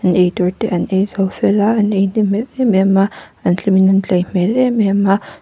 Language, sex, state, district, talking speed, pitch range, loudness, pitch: Mizo, female, Mizoram, Aizawl, 220 wpm, 190-210 Hz, -15 LUFS, 195 Hz